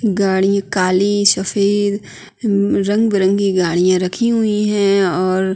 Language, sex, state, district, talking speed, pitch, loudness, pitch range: Hindi, female, Uttarakhand, Tehri Garhwal, 110 wpm, 200 Hz, -15 LUFS, 190-205 Hz